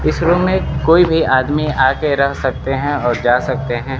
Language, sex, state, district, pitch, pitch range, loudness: Hindi, male, Bihar, Kaimur, 140 Hz, 130-155 Hz, -15 LUFS